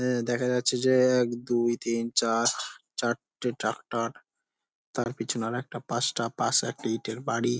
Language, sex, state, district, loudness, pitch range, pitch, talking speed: Bengali, male, West Bengal, Jhargram, -28 LUFS, 115-125 Hz, 120 Hz, 160 wpm